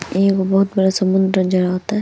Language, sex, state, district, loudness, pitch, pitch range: Bhojpuri, female, Uttar Pradesh, Deoria, -16 LUFS, 190 Hz, 185-195 Hz